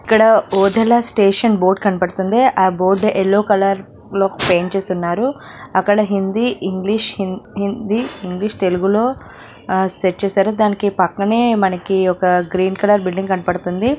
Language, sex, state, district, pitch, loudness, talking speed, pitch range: Telugu, female, Telangana, Nalgonda, 195 Hz, -16 LUFS, 115 wpm, 185-215 Hz